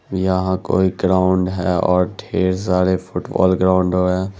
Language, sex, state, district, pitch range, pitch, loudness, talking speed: Hindi, male, Bihar, Araria, 90-95 Hz, 95 Hz, -18 LUFS, 135 wpm